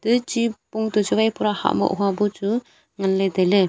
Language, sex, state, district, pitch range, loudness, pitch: Wancho, female, Arunachal Pradesh, Longding, 195-220 Hz, -22 LUFS, 210 Hz